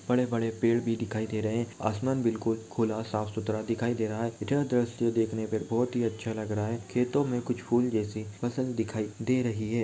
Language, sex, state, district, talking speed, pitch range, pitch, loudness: Hindi, male, Uttar Pradesh, Jalaun, 225 wpm, 110-120 Hz, 115 Hz, -30 LUFS